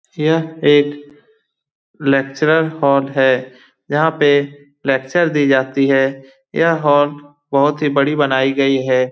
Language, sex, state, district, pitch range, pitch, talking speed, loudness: Hindi, male, Bihar, Lakhisarai, 135-150 Hz, 145 Hz, 125 wpm, -16 LUFS